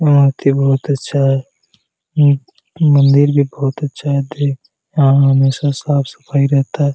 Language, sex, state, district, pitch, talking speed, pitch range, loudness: Hindi, male, Jharkhand, Jamtara, 140 Hz, 140 wpm, 135-145 Hz, -14 LUFS